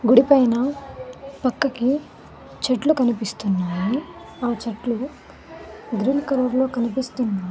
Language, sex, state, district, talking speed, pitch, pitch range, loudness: Telugu, female, Telangana, Mahabubabad, 80 wpm, 250 Hz, 235-270 Hz, -22 LUFS